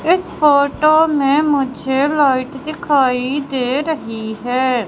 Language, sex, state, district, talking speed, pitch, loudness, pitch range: Hindi, female, Madhya Pradesh, Katni, 110 wpm, 275 Hz, -16 LUFS, 255-300 Hz